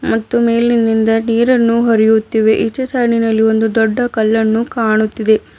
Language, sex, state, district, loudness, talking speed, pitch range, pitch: Kannada, female, Karnataka, Bidar, -13 LUFS, 105 wpm, 220-235 Hz, 225 Hz